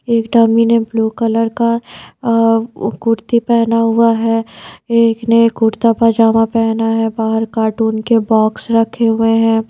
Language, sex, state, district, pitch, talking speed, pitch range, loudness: Hindi, female, Bihar, Patna, 225 Hz, 150 wpm, 225-230 Hz, -14 LUFS